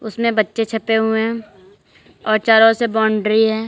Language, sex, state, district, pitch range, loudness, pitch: Hindi, female, Uttar Pradesh, Lalitpur, 215-225 Hz, -16 LUFS, 220 Hz